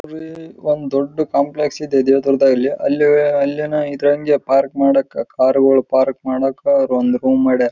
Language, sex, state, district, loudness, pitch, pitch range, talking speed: Kannada, male, Karnataka, Raichur, -16 LUFS, 140 Hz, 135-150 Hz, 100 wpm